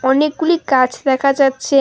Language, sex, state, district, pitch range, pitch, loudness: Bengali, female, West Bengal, Alipurduar, 265-295 Hz, 275 Hz, -15 LUFS